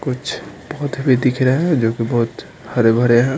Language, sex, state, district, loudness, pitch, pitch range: Hindi, male, Bihar, Patna, -17 LUFS, 130 Hz, 120-135 Hz